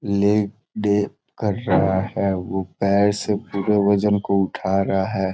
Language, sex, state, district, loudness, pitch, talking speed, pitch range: Hindi, male, Bihar, Gopalganj, -21 LUFS, 100 Hz, 155 wpm, 95-105 Hz